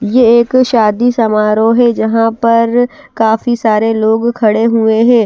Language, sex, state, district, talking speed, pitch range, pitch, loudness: Hindi, female, Bihar, West Champaran, 150 wpm, 220-240 Hz, 225 Hz, -11 LUFS